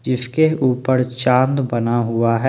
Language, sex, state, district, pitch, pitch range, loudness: Hindi, male, Jharkhand, Ranchi, 125 Hz, 120-130 Hz, -18 LUFS